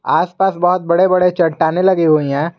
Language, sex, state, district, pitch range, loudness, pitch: Hindi, male, Jharkhand, Garhwa, 160-185 Hz, -14 LUFS, 175 Hz